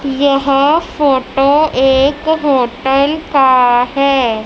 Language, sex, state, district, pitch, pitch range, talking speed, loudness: Hindi, female, Madhya Pradesh, Dhar, 275 Hz, 260-285 Hz, 80 wpm, -12 LUFS